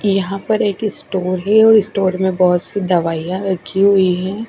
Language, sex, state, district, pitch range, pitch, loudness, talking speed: Hindi, female, Punjab, Fazilka, 185-205 Hz, 190 Hz, -15 LUFS, 200 wpm